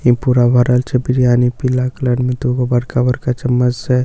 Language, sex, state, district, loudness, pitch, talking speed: Maithili, male, Bihar, Katihar, -15 LUFS, 125 Hz, 205 wpm